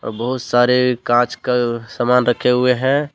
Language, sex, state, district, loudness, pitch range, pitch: Hindi, male, Jharkhand, Deoghar, -17 LUFS, 120-125 Hz, 125 Hz